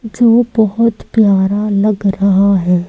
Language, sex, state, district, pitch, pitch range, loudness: Hindi, female, Madhya Pradesh, Umaria, 205 Hz, 195-225 Hz, -12 LUFS